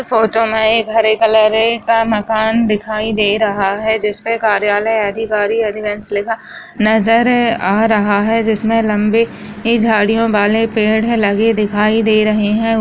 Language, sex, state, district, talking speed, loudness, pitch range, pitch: Hindi, female, Rajasthan, Nagaur, 145 wpm, -14 LUFS, 210-225 Hz, 220 Hz